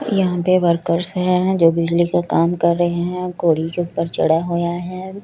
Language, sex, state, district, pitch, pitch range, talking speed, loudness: Hindi, female, Chhattisgarh, Raipur, 175 Hz, 170-180 Hz, 185 wpm, -18 LUFS